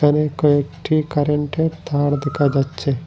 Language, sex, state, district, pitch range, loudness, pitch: Bengali, male, Assam, Hailakandi, 140-150 Hz, -19 LUFS, 145 Hz